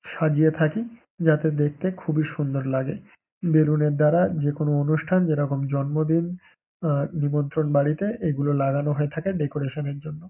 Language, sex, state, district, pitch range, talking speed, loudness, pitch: Bengali, male, West Bengal, Paschim Medinipur, 145-160 Hz, 140 wpm, -24 LUFS, 150 Hz